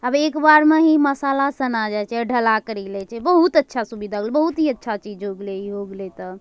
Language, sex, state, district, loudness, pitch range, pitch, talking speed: Angika, female, Bihar, Bhagalpur, -19 LUFS, 205-290 Hz, 235 Hz, 260 wpm